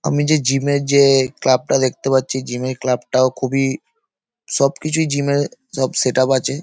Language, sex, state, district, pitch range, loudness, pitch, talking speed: Bengali, male, West Bengal, Paschim Medinipur, 130-145 Hz, -17 LUFS, 135 Hz, 190 wpm